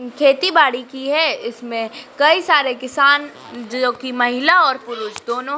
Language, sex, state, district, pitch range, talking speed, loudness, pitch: Hindi, female, Madhya Pradesh, Dhar, 245-290 Hz, 140 wpm, -16 LUFS, 260 Hz